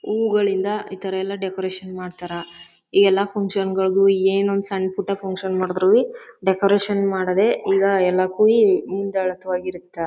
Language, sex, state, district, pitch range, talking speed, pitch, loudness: Kannada, female, Karnataka, Chamarajanagar, 185-200 Hz, 130 wpm, 195 Hz, -20 LUFS